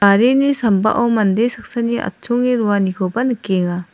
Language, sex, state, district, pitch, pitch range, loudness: Garo, female, Meghalaya, South Garo Hills, 225 Hz, 200-240 Hz, -17 LUFS